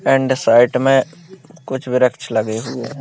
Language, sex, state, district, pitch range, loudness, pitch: Hindi, male, Uttar Pradesh, Hamirpur, 120-135 Hz, -16 LUFS, 130 Hz